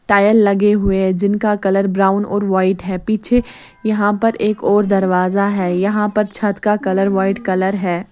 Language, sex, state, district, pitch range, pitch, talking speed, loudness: Hindi, female, Odisha, Sambalpur, 190-210 Hz, 200 Hz, 185 wpm, -16 LUFS